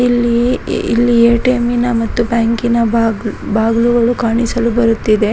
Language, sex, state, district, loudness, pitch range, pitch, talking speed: Kannada, female, Karnataka, Raichur, -14 LUFS, 230-240 Hz, 235 Hz, 110 wpm